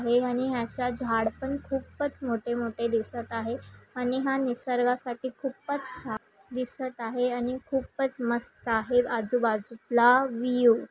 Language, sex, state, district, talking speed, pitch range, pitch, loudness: Marathi, female, Maharashtra, Chandrapur, 130 wpm, 235-260 Hz, 245 Hz, -28 LUFS